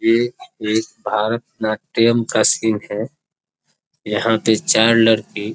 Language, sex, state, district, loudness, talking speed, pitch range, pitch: Hindi, male, Bihar, East Champaran, -18 LUFS, 110 wpm, 110-115 Hz, 110 Hz